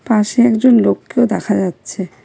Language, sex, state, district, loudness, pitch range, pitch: Bengali, female, West Bengal, Cooch Behar, -14 LUFS, 190-240 Hz, 220 Hz